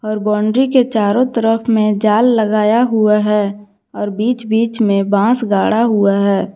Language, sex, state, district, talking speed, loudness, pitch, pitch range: Hindi, female, Jharkhand, Garhwa, 165 wpm, -14 LUFS, 215 Hz, 210-230 Hz